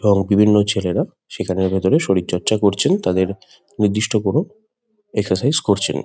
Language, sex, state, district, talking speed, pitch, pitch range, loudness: Bengali, male, West Bengal, Kolkata, 130 wpm, 100 Hz, 95-110 Hz, -18 LUFS